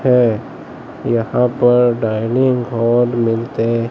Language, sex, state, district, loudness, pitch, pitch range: Hindi, male, Gujarat, Gandhinagar, -16 LUFS, 120 Hz, 115-125 Hz